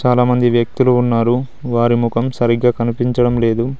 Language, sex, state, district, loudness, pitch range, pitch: Telugu, male, Telangana, Mahabubabad, -15 LUFS, 120-125 Hz, 120 Hz